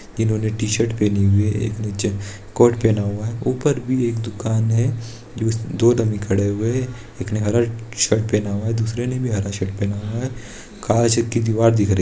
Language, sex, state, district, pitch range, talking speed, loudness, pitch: Hindi, male, Bihar, Saharsa, 105-115 Hz, 215 wpm, -20 LUFS, 110 Hz